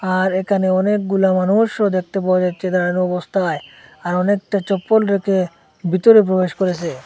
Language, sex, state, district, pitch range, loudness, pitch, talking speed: Bengali, male, Assam, Hailakandi, 185-200 Hz, -17 LUFS, 185 Hz, 135 wpm